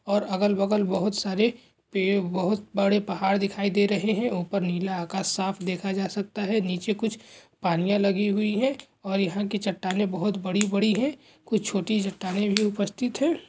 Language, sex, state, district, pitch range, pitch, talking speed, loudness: Hindi, male, Andhra Pradesh, Krishna, 190-210 Hz, 200 Hz, 185 wpm, -26 LUFS